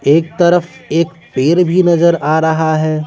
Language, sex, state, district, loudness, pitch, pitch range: Hindi, male, Bihar, West Champaran, -13 LUFS, 165 Hz, 155-170 Hz